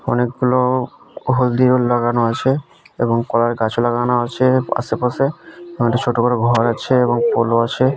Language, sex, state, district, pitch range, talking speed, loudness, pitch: Bengali, male, West Bengal, Malda, 120-130 Hz, 145 wpm, -17 LUFS, 120 Hz